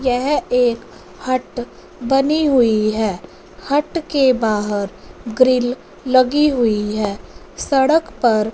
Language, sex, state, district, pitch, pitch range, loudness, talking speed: Hindi, female, Punjab, Fazilka, 250 Hz, 220-275 Hz, -17 LUFS, 105 wpm